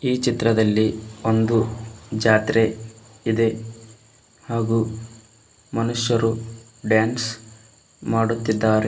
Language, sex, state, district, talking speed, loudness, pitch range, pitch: Kannada, male, Karnataka, Bidar, 60 wpm, -21 LUFS, 110-115 Hz, 115 Hz